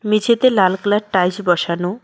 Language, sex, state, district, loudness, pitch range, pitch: Bengali, female, West Bengal, Cooch Behar, -16 LUFS, 180-215 Hz, 200 Hz